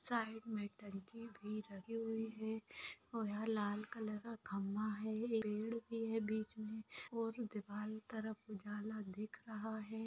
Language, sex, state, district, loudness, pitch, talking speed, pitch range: Hindi, female, Maharashtra, Nagpur, -45 LUFS, 220 Hz, 160 wpm, 210-225 Hz